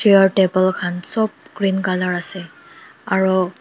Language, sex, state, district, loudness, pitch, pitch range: Nagamese, female, Nagaland, Dimapur, -18 LUFS, 190 Hz, 180-195 Hz